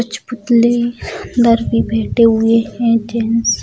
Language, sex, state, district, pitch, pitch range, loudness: Hindi, female, Bihar, Bhagalpur, 230 Hz, 225-235 Hz, -14 LUFS